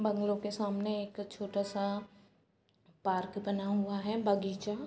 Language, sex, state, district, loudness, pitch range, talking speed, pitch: Hindi, female, Bihar, Sitamarhi, -35 LUFS, 200-205 Hz, 125 wpm, 200 Hz